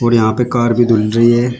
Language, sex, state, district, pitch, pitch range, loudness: Hindi, male, Uttar Pradesh, Shamli, 120 Hz, 115-120 Hz, -13 LUFS